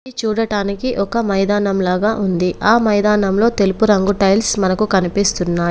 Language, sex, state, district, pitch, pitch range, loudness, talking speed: Telugu, female, Telangana, Komaram Bheem, 200 Hz, 195-220 Hz, -16 LUFS, 135 wpm